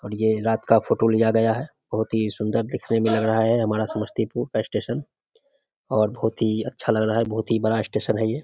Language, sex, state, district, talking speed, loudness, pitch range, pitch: Hindi, male, Bihar, Samastipur, 240 wpm, -23 LUFS, 110-115 Hz, 110 Hz